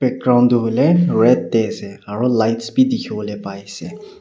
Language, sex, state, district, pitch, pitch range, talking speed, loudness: Nagamese, male, Nagaland, Kohima, 120 Hz, 105-175 Hz, 155 wpm, -16 LUFS